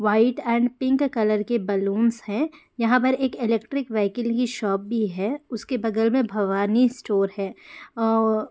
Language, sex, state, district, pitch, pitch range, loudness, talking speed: Hindi, female, Bihar, Jamui, 230 Hz, 210-250 Hz, -23 LUFS, 185 wpm